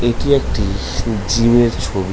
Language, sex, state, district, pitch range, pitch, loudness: Bengali, male, West Bengal, North 24 Parganas, 100-120 Hz, 115 Hz, -16 LUFS